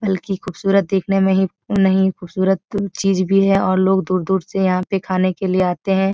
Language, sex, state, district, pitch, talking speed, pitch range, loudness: Hindi, female, Bihar, Jahanabad, 190 Hz, 215 wpm, 185-195 Hz, -18 LUFS